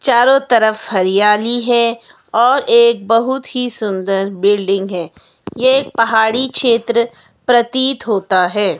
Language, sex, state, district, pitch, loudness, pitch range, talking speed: Hindi, female, Himachal Pradesh, Shimla, 230 Hz, -14 LUFS, 205-250 Hz, 125 wpm